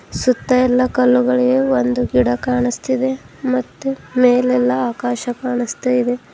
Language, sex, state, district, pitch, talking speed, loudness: Kannada, female, Karnataka, Bidar, 245 Hz, 95 wpm, -17 LUFS